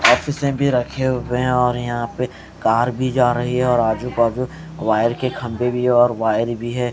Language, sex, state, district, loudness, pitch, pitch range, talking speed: Hindi, male, Punjab, Fazilka, -19 LUFS, 125 Hz, 120-125 Hz, 225 wpm